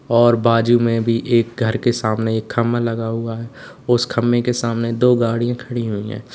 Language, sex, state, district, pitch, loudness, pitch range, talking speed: Hindi, male, Uttar Pradesh, Lalitpur, 115 Hz, -18 LUFS, 115-120 Hz, 210 wpm